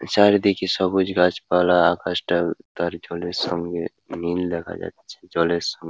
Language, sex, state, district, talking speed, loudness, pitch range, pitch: Bengali, male, West Bengal, Paschim Medinipur, 130 wpm, -22 LUFS, 85-95 Hz, 90 Hz